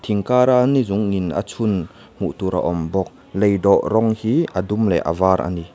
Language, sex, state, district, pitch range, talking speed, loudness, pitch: Mizo, male, Mizoram, Aizawl, 90-110 Hz, 230 wpm, -19 LUFS, 100 Hz